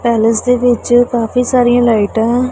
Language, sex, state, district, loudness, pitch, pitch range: Hindi, female, Punjab, Pathankot, -12 LUFS, 240 Hz, 230-245 Hz